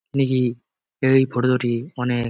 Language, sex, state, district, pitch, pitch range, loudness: Bengali, male, West Bengal, Jalpaiguri, 125 Hz, 120-130 Hz, -21 LUFS